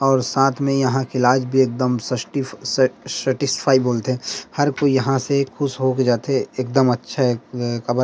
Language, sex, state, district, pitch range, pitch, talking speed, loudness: Chhattisgarhi, male, Chhattisgarh, Rajnandgaon, 125-135 Hz, 130 Hz, 170 wpm, -20 LUFS